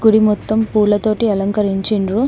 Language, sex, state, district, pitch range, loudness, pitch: Telugu, female, Telangana, Hyderabad, 205-220 Hz, -16 LUFS, 215 Hz